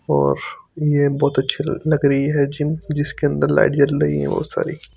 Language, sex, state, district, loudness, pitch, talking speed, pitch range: Hindi, male, Chandigarh, Chandigarh, -19 LUFS, 145 Hz, 195 wpm, 135-150 Hz